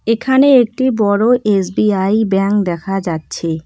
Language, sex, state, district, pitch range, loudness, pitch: Bengali, female, West Bengal, Cooch Behar, 190-235 Hz, -14 LUFS, 205 Hz